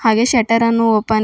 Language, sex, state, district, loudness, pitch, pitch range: Kannada, female, Karnataka, Bidar, -14 LUFS, 230 Hz, 220-230 Hz